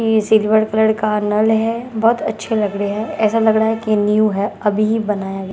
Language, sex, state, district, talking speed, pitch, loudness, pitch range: Hindi, female, Bihar, Katihar, 240 wpm, 215 Hz, -16 LUFS, 210-220 Hz